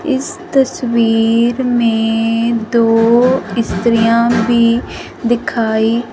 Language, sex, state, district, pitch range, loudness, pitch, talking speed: Hindi, female, Punjab, Fazilka, 225-240 Hz, -13 LUFS, 230 Hz, 70 wpm